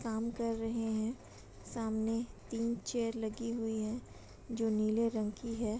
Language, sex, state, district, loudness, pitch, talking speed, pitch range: Hindi, female, Uttar Pradesh, Etah, -37 LUFS, 230 Hz, 155 wpm, 220-230 Hz